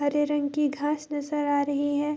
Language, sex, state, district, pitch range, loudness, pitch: Hindi, female, Bihar, Bhagalpur, 285-295 Hz, -27 LUFS, 290 Hz